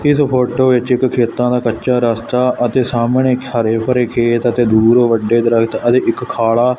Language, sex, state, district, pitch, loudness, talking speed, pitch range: Punjabi, male, Punjab, Fazilka, 120 Hz, -14 LUFS, 175 wpm, 115-125 Hz